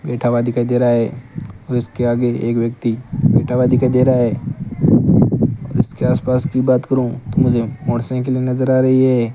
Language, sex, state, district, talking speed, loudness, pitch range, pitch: Hindi, male, Rajasthan, Bikaner, 185 wpm, -16 LUFS, 120-130 Hz, 125 Hz